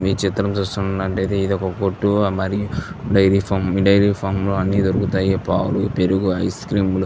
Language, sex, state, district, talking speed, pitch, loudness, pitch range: Telugu, male, Andhra Pradesh, Visakhapatnam, 170 wpm, 95 Hz, -19 LUFS, 95-100 Hz